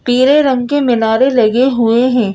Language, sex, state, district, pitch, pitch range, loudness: Hindi, female, Madhya Pradesh, Bhopal, 250 Hz, 230-265 Hz, -12 LUFS